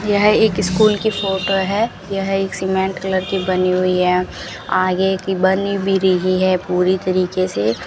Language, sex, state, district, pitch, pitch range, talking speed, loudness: Hindi, female, Rajasthan, Bikaner, 190 Hz, 185-195 Hz, 175 wpm, -17 LUFS